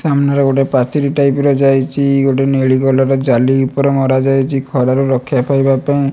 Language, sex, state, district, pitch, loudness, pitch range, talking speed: Odia, male, Odisha, Malkangiri, 135 Hz, -13 LUFS, 135-140 Hz, 175 wpm